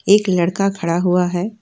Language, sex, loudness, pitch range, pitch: Hindi, female, -17 LUFS, 175-195 Hz, 180 Hz